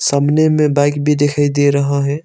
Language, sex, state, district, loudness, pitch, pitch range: Hindi, male, Arunachal Pradesh, Longding, -14 LUFS, 145 Hz, 140-150 Hz